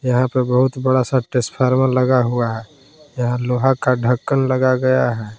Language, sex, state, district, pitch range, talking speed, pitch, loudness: Hindi, male, Jharkhand, Palamu, 125-130 Hz, 180 wpm, 130 Hz, -17 LUFS